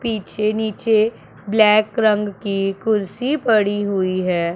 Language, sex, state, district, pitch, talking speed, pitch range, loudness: Hindi, male, Punjab, Pathankot, 210 Hz, 120 wpm, 195-220 Hz, -19 LUFS